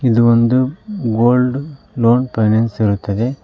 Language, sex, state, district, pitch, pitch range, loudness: Kannada, male, Karnataka, Koppal, 120 Hz, 115-130 Hz, -15 LUFS